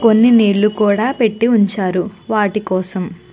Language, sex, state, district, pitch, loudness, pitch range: Telugu, female, Andhra Pradesh, Chittoor, 210 Hz, -15 LUFS, 195-225 Hz